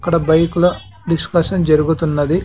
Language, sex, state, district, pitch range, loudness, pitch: Telugu, male, Andhra Pradesh, Sri Satya Sai, 155-170 Hz, -16 LUFS, 165 Hz